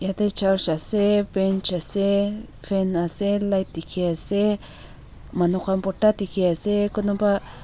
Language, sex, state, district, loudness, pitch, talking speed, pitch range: Nagamese, female, Nagaland, Dimapur, -20 LUFS, 195 Hz, 110 wpm, 180-205 Hz